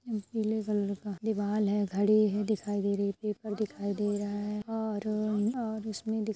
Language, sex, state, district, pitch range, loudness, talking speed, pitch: Hindi, female, Jharkhand, Jamtara, 205-215 Hz, -31 LUFS, 180 wpm, 210 Hz